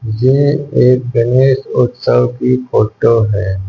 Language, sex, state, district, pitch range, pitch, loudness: Hindi, male, Haryana, Charkhi Dadri, 115-130 Hz, 125 Hz, -13 LUFS